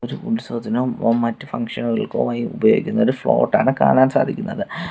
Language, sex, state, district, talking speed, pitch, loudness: Malayalam, male, Kerala, Kollam, 135 wpm, 120 Hz, -19 LUFS